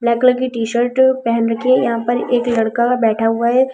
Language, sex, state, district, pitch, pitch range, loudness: Hindi, female, Delhi, New Delhi, 240 Hz, 230-250 Hz, -16 LUFS